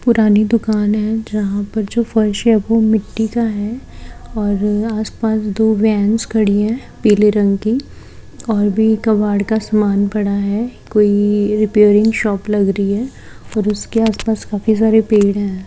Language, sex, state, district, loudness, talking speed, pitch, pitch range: Hindi, female, Haryana, Charkhi Dadri, -15 LUFS, 165 wpm, 215 Hz, 205-220 Hz